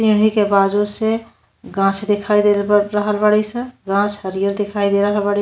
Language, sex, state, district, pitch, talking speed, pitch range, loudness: Bhojpuri, female, Uttar Pradesh, Ghazipur, 205 Hz, 200 wpm, 200-210 Hz, -17 LUFS